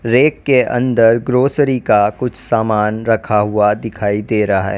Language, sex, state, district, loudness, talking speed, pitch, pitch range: Hindi, female, Uttar Pradesh, Lalitpur, -15 LUFS, 165 wpm, 115 Hz, 105-125 Hz